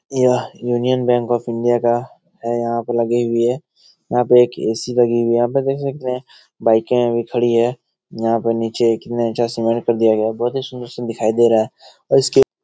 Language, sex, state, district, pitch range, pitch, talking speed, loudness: Hindi, male, Bihar, Jahanabad, 115-125 Hz, 120 Hz, 220 wpm, -18 LUFS